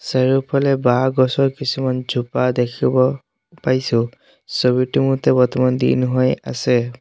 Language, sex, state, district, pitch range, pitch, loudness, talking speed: Assamese, male, Assam, Sonitpur, 125-135 Hz, 130 Hz, -18 LUFS, 110 wpm